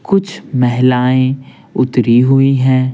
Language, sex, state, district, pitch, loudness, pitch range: Hindi, male, Bihar, Patna, 130 Hz, -12 LUFS, 125-135 Hz